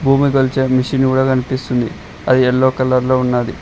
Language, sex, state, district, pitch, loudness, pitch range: Telugu, male, Telangana, Mahabubabad, 130 Hz, -15 LUFS, 125-130 Hz